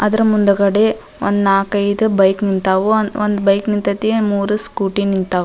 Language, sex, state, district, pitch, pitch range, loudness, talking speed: Kannada, female, Karnataka, Dharwad, 200 Hz, 195-210 Hz, -15 LUFS, 145 wpm